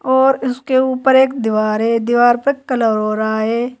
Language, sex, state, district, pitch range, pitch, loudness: Hindi, female, Uttar Pradesh, Saharanpur, 225-260 Hz, 245 Hz, -15 LUFS